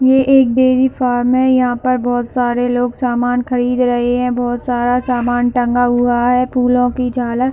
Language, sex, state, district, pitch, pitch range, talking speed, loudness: Hindi, female, Jharkhand, Sahebganj, 245 Hz, 245-255 Hz, 185 wpm, -14 LUFS